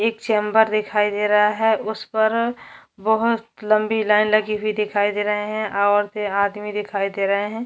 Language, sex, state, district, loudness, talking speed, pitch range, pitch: Hindi, female, Chhattisgarh, Jashpur, -20 LUFS, 180 wpm, 205-220 Hz, 210 Hz